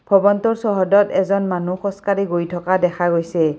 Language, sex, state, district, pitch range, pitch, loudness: Assamese, female, Assam, Kamrup Metropolitan, 175-200 Hz, 190 Hz, -18 LUFS